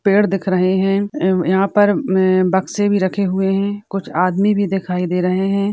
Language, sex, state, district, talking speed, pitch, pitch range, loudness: Hindi, female, Rajasthan, Churu, 200 wpm, 195 Hz, 185-200 Hz, -17 LUFS